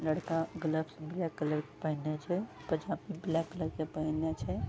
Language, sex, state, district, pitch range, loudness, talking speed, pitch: Maithili, female, Bihar, Vaishali, 155-165 Hz, -36 LUFS, 180 wpm, 160 Hz